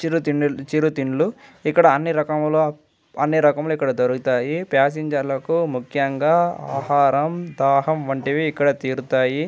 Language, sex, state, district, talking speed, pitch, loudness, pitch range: Telugu, male, Andhra Pradesh, Anantapur, 115 wpm, 145 Hz, -20 LUFS, 135-155 Hz